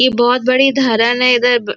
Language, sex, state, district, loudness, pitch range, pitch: Hindi, female, Maharashtra, Nagpur, -12 LUFS, 240-255 Hz, 250 Hz